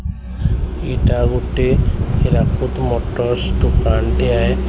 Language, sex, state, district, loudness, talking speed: Odia, male, Odisha, Sambalpur, -17 LUFS, 90 wpm